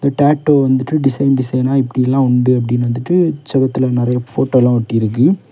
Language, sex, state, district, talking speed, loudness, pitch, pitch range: Tamil, male, Tamil Nadu, Kanyakumari, 165 wpm, -14 LUFS, 130 Hz, 125-140 Hz